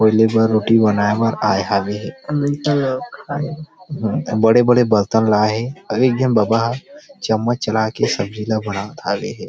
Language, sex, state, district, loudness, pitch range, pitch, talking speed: Chhattisgarhi, male, Chhattisgarh, Rajnandgaon, -18 LUFS, 110-130 Hz, 110 Hz, 170 wpm